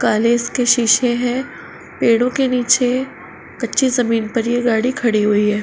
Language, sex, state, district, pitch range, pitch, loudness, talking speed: Hindi, female, Uttar Pradesh, Hamirpur, 230-250 Hz, 240 Hz, -16 LUFS, 160 wpm